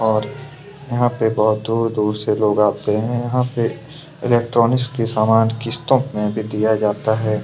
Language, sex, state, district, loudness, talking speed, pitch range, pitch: Hindi, male, Chhattisgarh, Kabirdham, -18 LUFS, 135 wpm, 105-120 Hz, 115 Hz